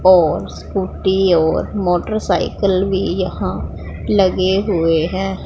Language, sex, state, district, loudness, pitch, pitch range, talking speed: Hindi, female, Punjab, Pathankot, -17 LUFS, 190 Hz, 180-195 Hz, 100 wpm